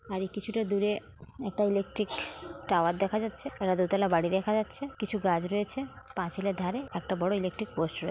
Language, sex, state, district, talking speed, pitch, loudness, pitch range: Bengali, female, West Bengal, Paschim Medinipur, 170 wpm, 200 Hz, -31 LUFS, 185-215 Hz